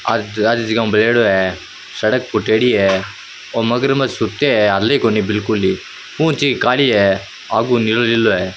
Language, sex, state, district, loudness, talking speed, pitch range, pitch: Rajasthani, male, Rajasthan, Churu, -15 LUFS, 55 wpm, 100-120 Hz, 110 Hz